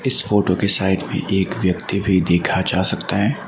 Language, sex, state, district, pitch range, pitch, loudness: Hindi, male, Assam, Sonitpur, 90-100 Hz, 95 Hz, -18 LUFS